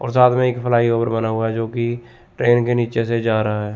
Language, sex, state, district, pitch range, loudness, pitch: Hindi, male, Chandigarh, Chandigarh, 115-120 Hz, -18 LUFS, 115 Hz